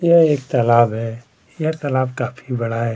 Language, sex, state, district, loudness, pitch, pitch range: Hindi, male, Chhattisgarh, Kabirdham, -18 LUFS, 125 Hz, 115-145 Hz